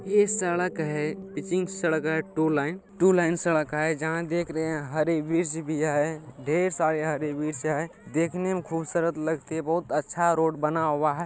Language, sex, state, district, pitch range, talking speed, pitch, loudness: Maithili, male, Bihar, Supaul, 155-170 Hz, 185 wpm, 160 Hz, -27 LUFS